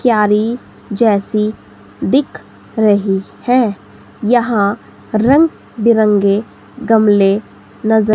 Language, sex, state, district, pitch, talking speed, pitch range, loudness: Hindi, female, Himachal Pradesh, Shimla, 220 Hz, 75 wpm, 205-240 Hz, -14 LUFS